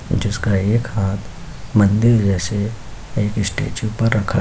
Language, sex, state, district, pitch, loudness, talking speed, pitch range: Hindi, male, Uttar Pradesh, Jyotiba Phule Nagar, 105 Hz, -19 LUFS, 135 wpm, 100-115 Hz